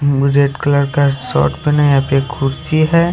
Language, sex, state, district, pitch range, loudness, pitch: Hindi, male, Odisha, Khordha, 135-150 Hz, -14 LUFS, 140 Hz